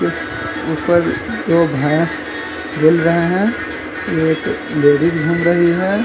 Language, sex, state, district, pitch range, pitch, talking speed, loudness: Hindi, male, Uttar Pradesh, Gorakhpur, 160-170 Hz, 165 Hz, 120 wpm, -16 LUFS